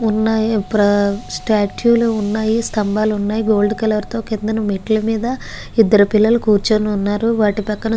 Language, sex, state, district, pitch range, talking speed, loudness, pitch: Telugu, female, Andhra Pradesh, Guntur, 210-225 Hz, 130 wpm, -16 LUFS, 215 Hz